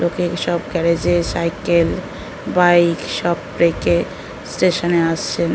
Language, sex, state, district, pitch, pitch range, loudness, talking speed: Bengali, female, West Bengal, North 24 Parganas, 170 Hz, 170-175 Hz, -18 LUFS, 95 wpm